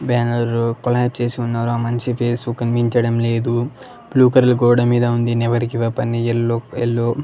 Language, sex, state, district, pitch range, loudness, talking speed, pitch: Telugu, male, Andhra Pradesh, Annamaya, 115-120 Hz, -18 LUFS, 155 wpm, 120 Hz